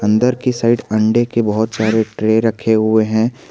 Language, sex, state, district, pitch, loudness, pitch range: Hindi, male, Jharkhand, Garhwa, 110 Hz, -15 LUFS, 110-115 Hz